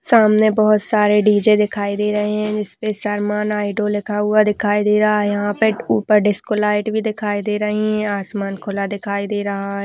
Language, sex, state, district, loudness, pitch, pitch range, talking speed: Hindi, female, Rajasthan, Nagaur, -18 LUFS, 210 Hz, 205-215 Hz, 200 wpm